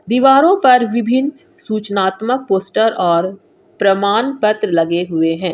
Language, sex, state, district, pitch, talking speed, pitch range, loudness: Hindi, female, Jharkhand, Garhwa, 215 Hz, 120 wpm, 185-255 Hz, -15 LUFS